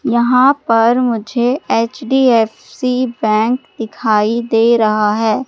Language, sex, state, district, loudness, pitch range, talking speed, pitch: Hindi, female, Madhya Pradesh, Katni, -14 LUFS, 225-255 Hz, 100 wpm, 235 Hz